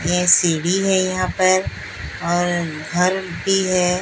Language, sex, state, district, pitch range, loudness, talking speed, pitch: Hindi, female, Odisha, Sambalpur, 170-185 Hz, -18 LUFS, 135 wpm, 180 Hz